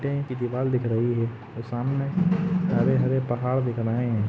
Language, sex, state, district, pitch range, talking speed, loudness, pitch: Hindi, male, Jharkhand, Sahebganj, 120-140 Hz, 180 wpm, -25 LUFS, 125 Hz